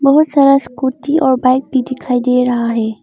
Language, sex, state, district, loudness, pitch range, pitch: Hindi, female, Arunachal Pradesh, Longding, -13 LUFS, 250-275 Hz, 260 Hz